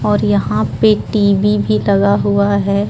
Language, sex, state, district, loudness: Hindi, female, Jharkhand, Ranchi, -14 LUFS